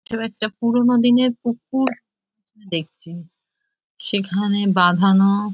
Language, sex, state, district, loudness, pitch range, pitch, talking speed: Bengali, female, West Bengal, Jhargram, -18 LUFS, 195-240 Hz, 210 Hz, 85 wpm